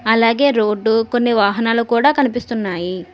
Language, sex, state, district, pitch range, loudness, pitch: Telugu, female, Telangana, Hyderabad, 215-240 Hz, -16 LUFS, 230 Hz